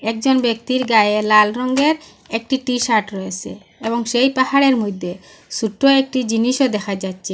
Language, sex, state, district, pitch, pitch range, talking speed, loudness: Bengali, female, Assam, Hailakandi, 230 Hz, 210-260 Hz, 140 wpm, -17 LUFS